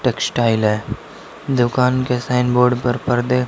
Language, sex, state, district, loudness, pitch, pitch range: Hindi, male, Uttar Pradesh, Lalitpur, -18 LUFS, 125 Hz, 120-125 Hz